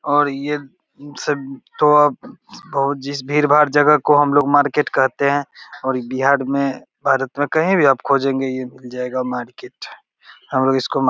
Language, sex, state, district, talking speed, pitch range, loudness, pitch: Hindi, male, Bihar, Begusarai, 165 wpm, 130-145 Hz, -18 LUFS, 140 Hz